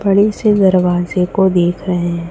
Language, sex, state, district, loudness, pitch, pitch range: Hindi, female, Chhattisgarh, Raipur, -14 LUFS, 180 Hz, 175-195 Hz